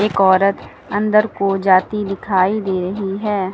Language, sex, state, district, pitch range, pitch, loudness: Hindi, female, Uttar Pradesh, Lucknow, 190-210 Hz, 195 Hz, -17 LUFS